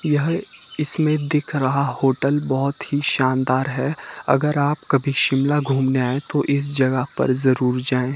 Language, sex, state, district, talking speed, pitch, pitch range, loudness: Hindi, male, Himachal Pradesh, Shimla, 155 wpm, 140 Hz, 130-145 Hz, -20 LUFS